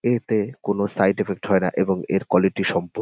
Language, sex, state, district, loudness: Bengali, male, West Bengal, North 24 Parganas, -22 LUFS